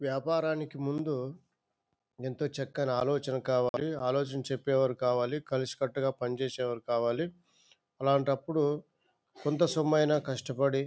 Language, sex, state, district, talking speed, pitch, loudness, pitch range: Telugu, male, Andhra Pradesh, Anantapur, 110 wpm, 135 Hz, -31 LUFS, 125-150 Hz